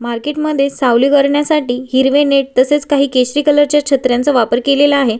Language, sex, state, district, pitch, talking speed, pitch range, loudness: Marathi, female, Maharashtra, Sindhudurg, 275 Hz, 175 wpm, 255-290 Hz, -13 LUFS